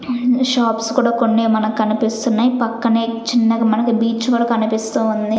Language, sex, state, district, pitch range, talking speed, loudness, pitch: Telugu, female, Andhra Pradesh, Sri Satya Sai, 220-235 Hz, 135 wpm, -17 LUFS, 230 Hz